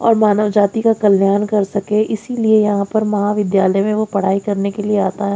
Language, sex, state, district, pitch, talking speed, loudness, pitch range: Hindi, female, Haryana, Jhajjar, 205 Hz, 215 wpm, -16 LUFS, 200-215 Hz